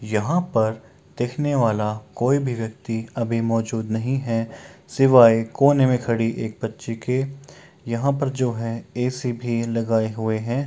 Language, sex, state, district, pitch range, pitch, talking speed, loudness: Maithili, male, Bihar, Kishanganj, 115-130 Hz, 115 Hz, 150 wpm, -22 LUFS